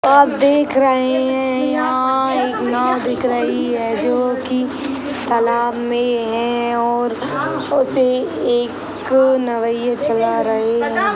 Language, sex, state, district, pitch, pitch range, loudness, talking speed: Hindi, female, Uttar Pradesh, Gorakhpur, 255 Hz, 240-265 Hz, -17 LUFS, 115 wpm